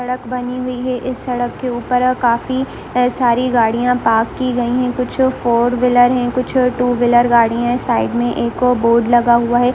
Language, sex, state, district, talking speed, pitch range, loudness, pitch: Hindi, female, Rajasthan, Churu, 170 wpm, 240-250 Hz, -15 LUFS, 245 Hz